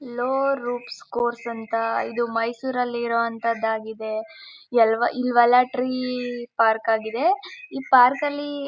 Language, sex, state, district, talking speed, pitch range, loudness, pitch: Kannada, female, Karnataka, Mysore, 95 wpm, 230-255 Hz, -23 LUFS, 240 Hz